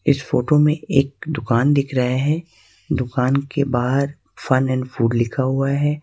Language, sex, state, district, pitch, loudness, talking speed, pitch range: Hindi, male, Jharkhand, Ranchi, 140 Hz, -20 LUFS, 170 wpm, 125-145 Hz